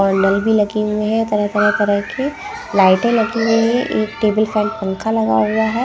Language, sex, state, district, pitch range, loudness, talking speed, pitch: Hindi, female, Punjab, Pathankot, 205-225 Hz, -16 LUFS, 205 wpm, 215 Hz